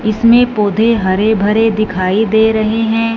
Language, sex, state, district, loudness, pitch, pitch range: Hindi, female, Punjab, Fazilka, -12 LUFS, 220 Hz, 210-225 Hz